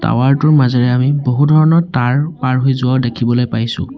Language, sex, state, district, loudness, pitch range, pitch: Assamese, male, Assam, Sonitpur, -13 LUFS, 125-145 Hz, 130 Hz